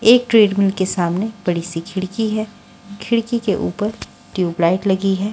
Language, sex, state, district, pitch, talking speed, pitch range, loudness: Hindi, female, Haryana, Charkhi Dadri, 200 Hz, 160 wpm, 185-215 Hz, -18 LUFS